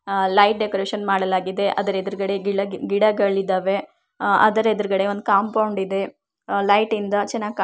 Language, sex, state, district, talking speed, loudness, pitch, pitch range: Kannada, female, Karnataka, Shimoga, 140 wpm, -20 LUFS, 200 Hz, 195-210 Hz